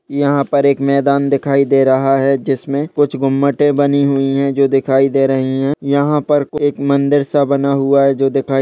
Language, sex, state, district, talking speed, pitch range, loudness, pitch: Hindi, male, Chhattisgarh, Sarguja, 210 wpm, 135-140 Hz, -14 LUFS, 140 Hz